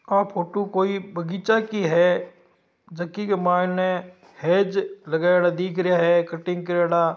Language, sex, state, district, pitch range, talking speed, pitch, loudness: Marwari, male, Rajasthan, Nagaur, 175-195 Hz, 135 wpm, 180 Hz, -22 LUFS